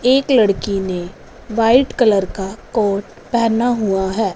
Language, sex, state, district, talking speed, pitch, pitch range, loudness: Hindi, female, Punjab, Fazilka, 135 wpm, 220 Hz, 195-235 Hz, -17 LUFS